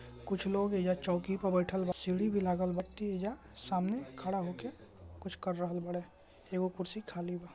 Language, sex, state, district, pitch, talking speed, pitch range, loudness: Bhojpuri, male, Bihar, Gopalganj, 185 Hz, 190 wpm, 180-195 Hz, -36 LUFS